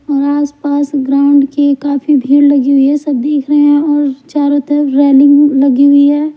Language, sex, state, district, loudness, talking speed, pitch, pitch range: Hindi, female, Bihar, Patna, -10 LUFS, 190 wpm, 285 Hz, 280-290 Hz